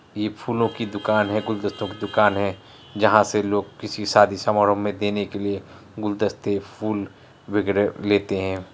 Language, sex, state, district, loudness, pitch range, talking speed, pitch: Hindi, male, Bihar, Araria, -22 LUFS, 100-105 Hz, 165 wpm, 105 Hz